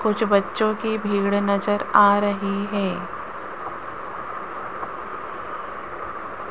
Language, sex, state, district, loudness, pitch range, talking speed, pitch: Hindi, female, Rajasthan, Jaipur, -24 LUFS, 200-215 Hz, 75 wpm, 205 Hz